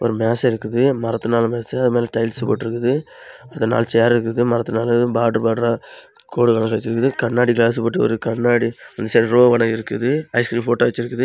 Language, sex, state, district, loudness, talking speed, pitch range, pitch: Tamil, male, Tamil Nadu, Kanyakumari, -18 LUFS, 145 wpm, 115-120 Hz, 120 Hz